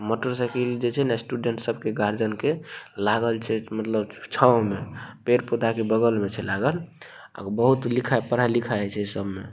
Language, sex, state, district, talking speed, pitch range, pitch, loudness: Maithili, male, Bihar, Madhepura, 200 wpm, 105-125 Hz, 115 Hz, -25 LUFS